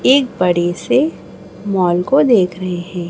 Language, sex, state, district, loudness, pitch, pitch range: Hindi, female, Chhattisgarh, Raipur, -15 LUFS, 185 Hz, 175-255 Hz